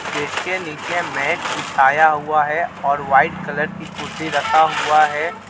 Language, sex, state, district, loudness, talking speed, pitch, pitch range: Hindi, male, Jharkhand, Ranchi, -18 LUFS, 150 wpm, 150 Hz, 145-160 Hz